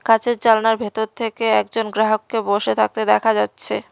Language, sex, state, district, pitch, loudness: Bengali, female, West Bengal, Cooch Behar, 220 Hz, -19 LUFS